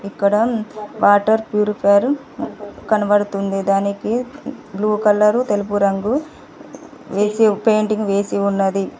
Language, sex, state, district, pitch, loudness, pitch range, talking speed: Telugu, female, Telangana, Mahabubabad, 210 Hz, -18 LUFS, 200-220 Hz, 85 wpm